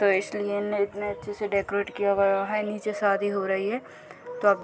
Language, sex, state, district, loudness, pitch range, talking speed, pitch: Hindi, female, Uttar Pradesh, Deoria, -27 LUFS, 200-210 Hz, 245 wpm, 205 Hz